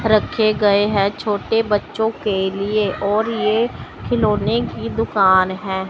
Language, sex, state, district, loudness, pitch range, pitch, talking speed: Hindi, male, Chandigarh, Chandigarh, -18 LUFS, 200-220 Hz, 210 Hz, 130 wpm